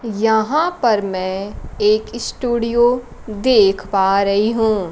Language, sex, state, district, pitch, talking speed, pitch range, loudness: Hindi, female, Bihar, Kaimur, 225 Hz, 110 wpm, 200-250 Hz, -17 LUFS